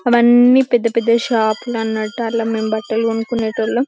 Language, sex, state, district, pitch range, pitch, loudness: Telugu, female, Telangana, Karimnagar, 220-240 Hz, 230 Hz, -16 LUFS